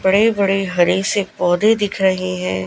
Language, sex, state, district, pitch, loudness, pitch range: Hindi, female, Gujarat, Gandhinagar, 190 Hz, -17 LUFS, 175-205 Hz